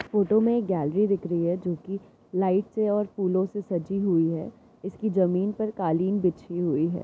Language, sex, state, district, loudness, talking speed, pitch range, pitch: Hindi, female, Uttar Pradesh, Jyotiba Phule Nagar, -26 LUFS, 205 wpm, 175-205 Hz, 190 Hz